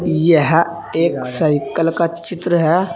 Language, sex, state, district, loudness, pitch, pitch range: Hindi, male, Uttar Pradesh, Saharanpur, -16 LUFS, 165 Hz, 160-170 Hz